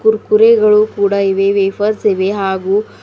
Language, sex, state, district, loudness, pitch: Kannada, female, Karnataka, Bidar, -13 LUFS, 200 Hz